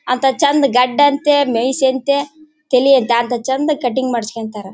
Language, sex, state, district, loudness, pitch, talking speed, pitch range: Kannada, female, Karnataka, Bellary, -15 LUFS, 265 Hz, 150 wpm, 245-285 Hz